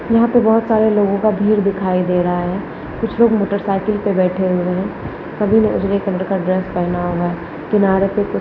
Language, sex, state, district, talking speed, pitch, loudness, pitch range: Hindi, female, Rajasthan, Nagaur, 215 wpm, 195 Hz, -17 LUFS, 180-215 Hz